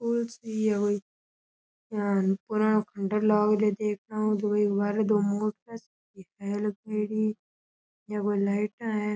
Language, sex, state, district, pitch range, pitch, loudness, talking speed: Rajasthani, male, Rajasthan, Churu, 205-215 Hz, 210 Hz, -28 LUFS, 40 wpm